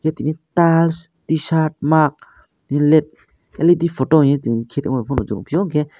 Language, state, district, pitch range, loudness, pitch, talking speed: Kokborok, Tripura, West Tripura, 140-160 Hz, -17 LUFS, 155 Hz, 120 wpm